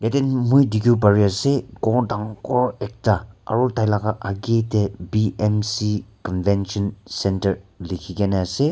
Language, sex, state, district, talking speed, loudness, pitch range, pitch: Nagamese, male, Nagaland, Kohima, 130 wpm, -21 LUFS, 100-115 Hz, 105 Hz